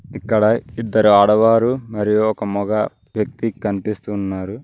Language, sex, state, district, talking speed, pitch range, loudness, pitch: Telugu, male, Telangana, Mahabubabad, 105 wpm, 105-115 Hz, -18 LUFS, 105 Hz